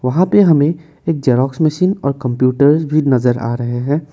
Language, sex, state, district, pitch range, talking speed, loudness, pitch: Hindi, male, Assam, Kamrup Metropolitan, 125-155 Hz, 190 wpm, -15 LUFS, 145 Hz